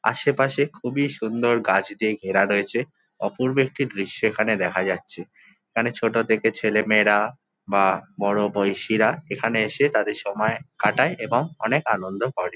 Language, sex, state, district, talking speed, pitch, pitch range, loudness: Bengali, male, West Bengal, Jhargram, 145 wpm, 110 Hz, 100-125 Hz, -22 LUFS